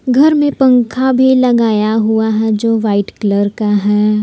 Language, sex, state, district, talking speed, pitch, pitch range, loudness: Hindi, female, Jharkhand, Palamu, 170 wpm, 220 Hz, 210-255 Hz, -12 LUFS